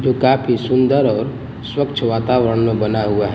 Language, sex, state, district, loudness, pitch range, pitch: Hindi, male, Gujarat, Gandhinagar, -17 LUFS, 115-130 Hz, 125 Hz